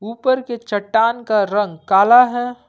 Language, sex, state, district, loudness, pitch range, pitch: Hindi, male, Jharkhand, Ranchi, -16 LUFS, 205-240 Hz, 225 Hz